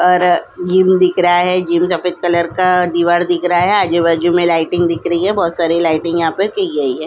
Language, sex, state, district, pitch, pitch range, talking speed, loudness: Hindi, female, Goa, North and South Goa, 175 Hz, 170-180 Hz, 235 wpm, -14 LUFS